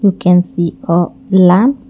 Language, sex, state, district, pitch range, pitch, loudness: English, female, Karnataka, Bangalore, 175-225 Hz, 180 Hz, -12 LUFS